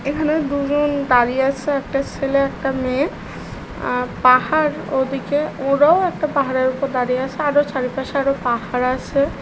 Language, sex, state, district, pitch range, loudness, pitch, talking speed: Bengali, female, West Bengal, Malda, 260-290 Hz, -19 LUFS, 275 Hz, 140 wpm